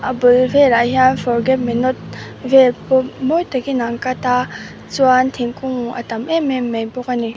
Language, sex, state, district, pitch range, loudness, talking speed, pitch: Mizo, female, Mizoram, Aizawl, 240-260 Hz, -16 LUFS, 180 wpm, 255 Hz